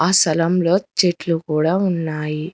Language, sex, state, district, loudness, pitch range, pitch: Telugu, female, Telangana, Hyderabad, -18 LUFS, 160-180 Hz, 165 Hz